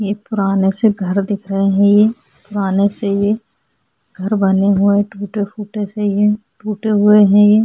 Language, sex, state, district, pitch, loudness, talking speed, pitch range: Hindi, female, Uttarakhand, Tehri Garhwal, 205 Hz, -15 LUFS, 165 wpm, 195-210 Hz